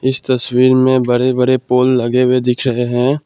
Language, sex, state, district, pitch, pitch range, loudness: Hindi, male, Assam, Kamrup Metropolitan, 125 Hz, 125-130 Hz, -13 LUFS